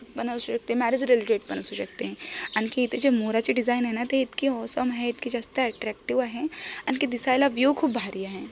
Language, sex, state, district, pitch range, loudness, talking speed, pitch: Marathi, female, Maharashtra, Solapur, 235-260 Hz, -25 LUFS, 185 wpm, 245 Hz